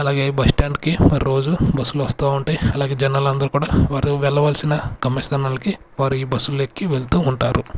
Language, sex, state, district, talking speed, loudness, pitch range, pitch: Telugu, male, Andhra Pradesh, Sri Satya Sai, 175 wpm, -19 LUFS, 135-145 Hz, 140 Hz